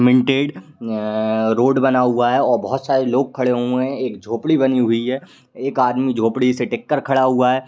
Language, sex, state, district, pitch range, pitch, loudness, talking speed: Hindi, male, Uttar Pradesh, Ghazipur, 120-135 Hz, 125 Hz, -18 LUFS, 210 wpm